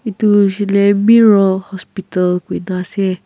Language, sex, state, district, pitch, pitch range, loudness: Nagamese, female, Nagaland, Kohima, 195 Hz, 185-205 Hz, -13 LUFS